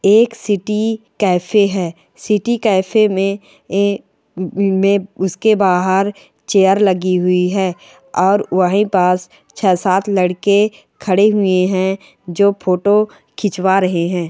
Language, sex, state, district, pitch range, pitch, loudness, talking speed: Hindi, female, Chhattisgarh, Rajnandgaon, 185-205 Hz, 195 Hz, -15 LUFS, 120 wpm